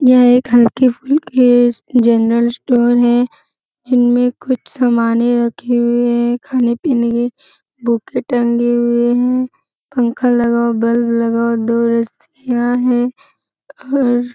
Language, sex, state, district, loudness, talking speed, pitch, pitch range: Hindi, female, Bihar, Jamui, -14 LUFS, 125 wpm, 240 Hz, 235-250 Hz